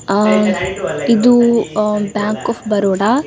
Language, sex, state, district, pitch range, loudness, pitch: Kannada, female, Karnataka, Dakshina Kannada, 205-230 Hz, -15 LUFS, 210 Hz